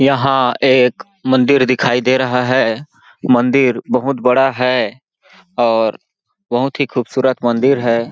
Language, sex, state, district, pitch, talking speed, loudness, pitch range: Hindi, male, Chhattisgarh, Balrampur, 130 Hz, 125 wpm, -15 LUFS, 120-135 Hz